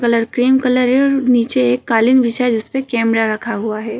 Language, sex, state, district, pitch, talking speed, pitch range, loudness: Hindi, female, Uttar Pradesh, Jyotiba Phule Nagar, 235 Hz, 225 wpm, 225-255 Hz, -15 LUFS